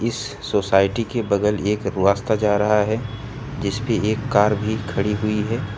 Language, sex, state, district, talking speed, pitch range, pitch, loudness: Hindi, male, Uttar Pradesh, Lucknow, 175 wpm, 105-115 Hz, 105 Hz, -21 LUFS